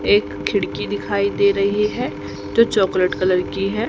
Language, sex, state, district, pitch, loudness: Hindi, female, Haryana, Charkhi Dadri, 180 Hz, -19 LUFS